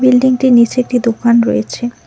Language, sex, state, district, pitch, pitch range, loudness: Bengali, female, West Bengal, Cooch Behar, 240 Hz, 235-250 Hz, -12 LUFS